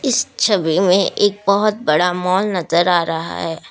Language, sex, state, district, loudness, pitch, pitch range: Hindi, female, Assam, Kamrup Metropolitan, -16 LUFS, 185 Hz, 170-205 Hz